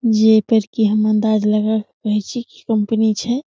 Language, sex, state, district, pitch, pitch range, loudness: Maithili, female, Bihar, Samastipur, 220 Hz, 215-225 Hz, -17 LUFS